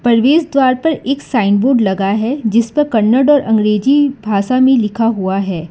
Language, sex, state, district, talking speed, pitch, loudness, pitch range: Hindi, female, Karnataka, Bangalore, 190 wpm, 235 Hz, -13 LUFS, 210-270 Hz